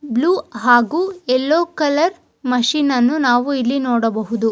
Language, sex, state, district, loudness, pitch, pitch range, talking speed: Kannada, female, Karnataka, Chamarajanagar, -17 LUFS, 255 Hz, 245-305 Hz, 120 wpm